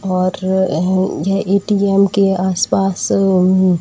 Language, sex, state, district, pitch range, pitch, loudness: Hindi, female, Uttar Pradesh, Etah, 185-195 Hz, 190 Hz, -15 LUFS